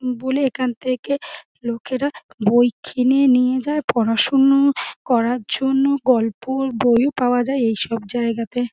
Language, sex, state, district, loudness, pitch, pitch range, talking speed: Bengali, female, West Bengal, Dakshin Dinajpur, -19 LUFS, 255 Hz, 235-270 Hz, 125 wpm